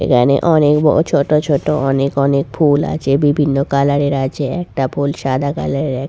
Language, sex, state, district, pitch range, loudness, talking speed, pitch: Bengali, female, West Bengal, Purulia, 135-150 Hz, -15 LUFS, 185 wpm, 140 Hz